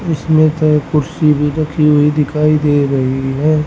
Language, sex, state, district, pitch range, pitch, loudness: Hindi, male, Haryana, Rohtak, 145-155 Hz, 150 Hz, -13 LUFS